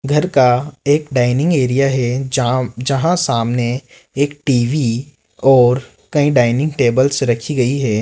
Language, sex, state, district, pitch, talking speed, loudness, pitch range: Hindi, male, Rajasthan, Jaipur, 130 Hz, 135 wpm, -16 LUFS, 120-145 Hz